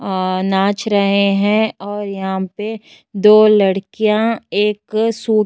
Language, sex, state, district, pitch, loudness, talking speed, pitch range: Hindi, female, Uttar Pradesh, Jyotiba Phule Nagar, 205 Hz, -16 LUFS, 130 wpm, 195-215 Hz